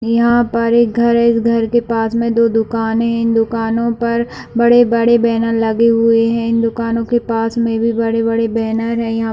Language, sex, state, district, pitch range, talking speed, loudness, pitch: Hindi, female, Chhattisgarh, Raigarh, 225-235 Hz, 200 wpm, -14 LUFS, 230 Hz